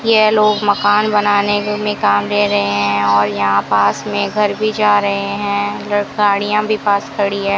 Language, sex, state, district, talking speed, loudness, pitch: Hindi, female, Rajasthan, Bikaner, 195 wpm, -15 LUFS, 205 Hz